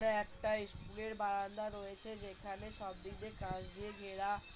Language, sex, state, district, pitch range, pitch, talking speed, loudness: Bengali, male, West Bengal, North 24 Parganas, 195-215 Hz, 205 Hz, 155 wpm, -43 LUFS